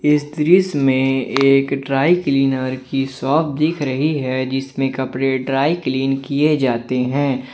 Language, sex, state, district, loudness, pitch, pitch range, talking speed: Hindi, male, Jharkhand, Ranchi, -18 LUFS, 135 Hz, 130-145 Hz, 145 wpm